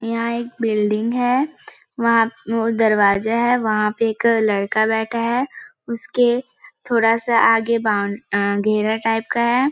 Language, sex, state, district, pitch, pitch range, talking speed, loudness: Hindi, female, Chhattisgarh, Balrampur, 230 Hz, 220-240 Hz, 160 wpm, -19 LUFS